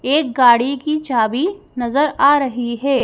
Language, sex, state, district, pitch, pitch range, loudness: Hindi, male, Madhya Pradesh, Bhopal, 270 Hz, 245-295 Hz, -16 LUFS